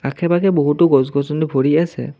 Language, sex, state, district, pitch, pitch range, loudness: Assamese, male, Assam, Kamrup Metropolitan, 150 Hz, 140-170 Hz, -16 LUFS